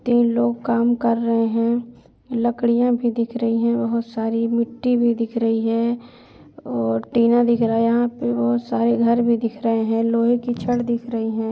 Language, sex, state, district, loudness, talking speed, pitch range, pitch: Hindi, female, Uttar Pradesh, Budaun, -20 LUFS, 215 wpm, 230-240 Hz, 235 Hz